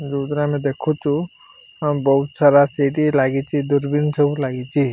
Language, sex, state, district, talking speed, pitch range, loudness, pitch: Odia, male, Odisha, Malkangiri, 120 wpm, 140-150 Hz, -19 LUFS, 145 Hz